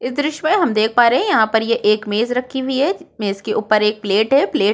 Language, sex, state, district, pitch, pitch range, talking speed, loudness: Hindi, female, Chhattisgarh, Korba, 230 Hz, 215-265 Hz, 280 wpm, -17 LUFS